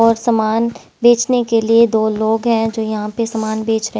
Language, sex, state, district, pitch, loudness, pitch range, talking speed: Hindi, female, Haryana, Jhajjar, 225 Hz, -16 LUFS, 220-230 Hz, 195 wpm